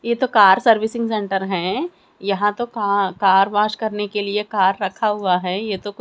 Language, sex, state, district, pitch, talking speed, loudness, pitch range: Hindi, female, Haryana, Charkhi Dadri, 205 Hz, 200 wpm, -19 LUFS, 195-220 Hz